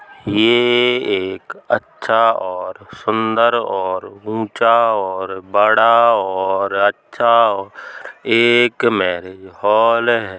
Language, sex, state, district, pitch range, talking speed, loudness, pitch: Hindi, male, Uttar Pradesh, Hamirpur, 95-115 Hz, 90 wpm, -16 LUFS, 110 Hz